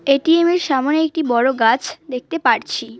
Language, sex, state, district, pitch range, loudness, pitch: Bengali, female, West Bengal, Cooch Behar, 255-320 Hz, -17 LUFS, 280 Hz